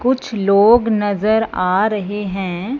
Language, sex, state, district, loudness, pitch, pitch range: Hindi, female, Punjab, Fazilka, -16 LUFS, 210 Hz, 195-225 Hz